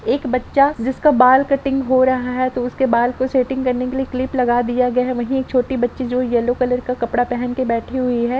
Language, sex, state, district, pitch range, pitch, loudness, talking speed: Hindi, female, Jharkhand, Sahebganj, 245-260 Hz, 255 Hz, -18 LUFS, 250 wpm